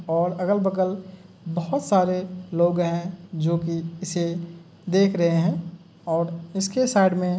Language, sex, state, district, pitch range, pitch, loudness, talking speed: Hindi, male, Uttar Pradesh, Muzaffarnagar, 170-185 Hz, 175 Hz, -24 LUFS, 140 wpm